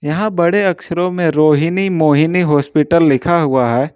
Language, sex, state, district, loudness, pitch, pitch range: Hindi, male, Jharkhand, Ranchi, -14 LUFS, 160 Hz, 150-175 Hz